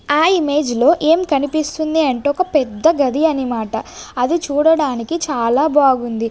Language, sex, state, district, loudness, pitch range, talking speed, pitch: Telugu, female, Andhra Pradesh, Sri Satya Sai, -16 LUFS, 255-320 Hz, 135 wpm, 295 Hz